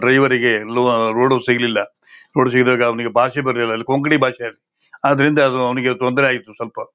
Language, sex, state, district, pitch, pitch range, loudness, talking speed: Kannada, male, Karnataka, Shimoga, 125 Hz, 120-135 Hz, -16 LUFS, 145 wpm